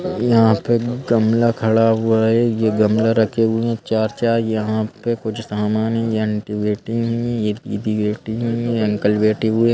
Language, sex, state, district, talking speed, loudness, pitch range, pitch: Hindi, male, Madhya Pradesh, Bhopal, 195 wpm, -18 LUFS, 110-115 Hz, 110 Hz